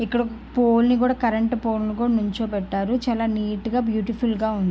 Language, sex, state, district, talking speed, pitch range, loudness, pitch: Telugu, female, Andhra Pradesh, Guntur, 190 wpm, 215-240 Hz, -22 LUFS, 225 Hz